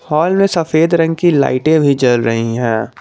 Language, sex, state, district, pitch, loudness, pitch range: Hindi, male, Jharkhand, Garhwa, 150 Hz, -13 LUFS, 120-165 Hz